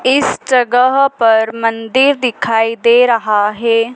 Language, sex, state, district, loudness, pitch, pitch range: Hindi, female, Madhya Pradesh, Dhar, -12 LUFS, 235 Hz, 225-255 Hz